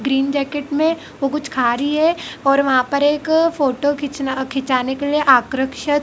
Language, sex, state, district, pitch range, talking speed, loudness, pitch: Hindi, female, Madhya Pradesh, Dhar, 265-295 Hz, 180 wpm, -18 LUFS, 280 Hz